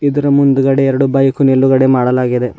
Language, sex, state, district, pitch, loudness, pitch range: Kannada, male, Karnataka, Bidar, 135 Hz, -12 LUFS, 130-135 Hz